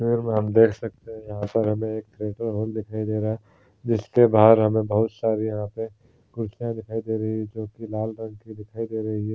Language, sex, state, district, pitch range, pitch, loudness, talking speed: Hindi, male, Bihar, Saharsa, 105-115 Hz, 110 Hz, -24 LUFS, 160 wpm